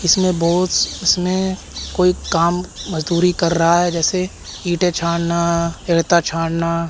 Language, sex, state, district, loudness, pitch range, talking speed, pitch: Hindi, male, Chandigarh, Chandigarh, -18 LUFS, 170-180 Hz, 120 wpm, 170 Hz